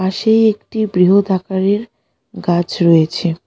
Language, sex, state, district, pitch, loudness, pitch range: Bengali, female, West Bengal, Alipurduar, 190 Hz, -15 LUFS, 175-210 Hz